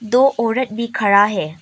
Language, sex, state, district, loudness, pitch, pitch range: Hindi, female, Arunachal Pradesh, Papum Pare, -16 LUFS, 225 Hz, 200-245 Hz